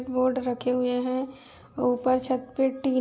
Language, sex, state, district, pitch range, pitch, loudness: Hindi, female, Uttar Pradesh, Jyotiba Phule Nagar, 250-260 Hz, 255 Hz, -26 LUFS